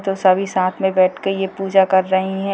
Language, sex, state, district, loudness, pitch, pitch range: Hindi, female, Bihar, Purnia, -17 LUFS, 190 Hz, 185-195 Hz